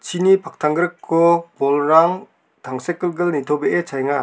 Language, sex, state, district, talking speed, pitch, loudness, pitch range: Garo, male, Meghalaya, South Garo Hills, 85 wpm, 170 Hz, -18 LUFS, 145-175 Hz